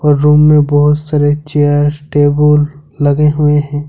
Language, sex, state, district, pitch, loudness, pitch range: Hindi, male, Jharkhand, Ranchi, 150 Hz, -11 LUFS, 145-150 Hz